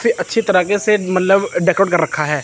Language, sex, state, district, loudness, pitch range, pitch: Hindi, male, Chandigarh, Chandigarh, -15 LUFS, 175-205 Hz, 190 Hz